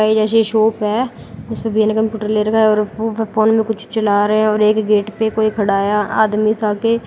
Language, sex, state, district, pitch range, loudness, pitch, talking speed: Hindi, female, Uttar Pradesh, Lalitpur, 210-220 Hz, -16 LUFS, 215 Hz, 205 wpm